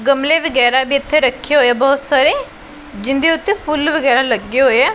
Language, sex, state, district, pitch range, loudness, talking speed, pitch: Punjabi, female, Punjab, Pathankot, 260-305 Hz, -14 LUFS, 195 wpm, 275 Hz